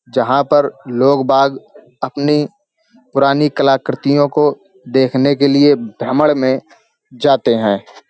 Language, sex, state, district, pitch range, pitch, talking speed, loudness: Hindi, male, Uttar Pradesh, Hamirpur, 130-145 Hz, 140 Hz, 125 wpm, -14 LUFS